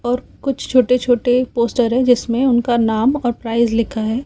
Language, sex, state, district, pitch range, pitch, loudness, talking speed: Hindi, female, Chhattisgarh, Raipur, 235-250 Hz, 245 Hz, -17 LUFS, 185 wpm